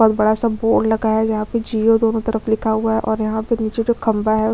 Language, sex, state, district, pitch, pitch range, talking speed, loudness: Hindi, female, Chhattisgarh, Kabirdham, 220 Hz, 220-225 Hz, 275 wpm, -18 LUFS